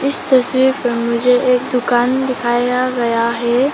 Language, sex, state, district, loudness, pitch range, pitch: Hindi, female, Arunachal Pradesh, Papum Pare, -15 LUFS, 240-260 Hz, 250 Hz